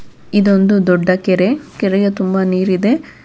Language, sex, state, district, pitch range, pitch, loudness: Kannada, female, Karnataka, Bangalore, 185-200 Hz, 195 Hz, -14 LUFS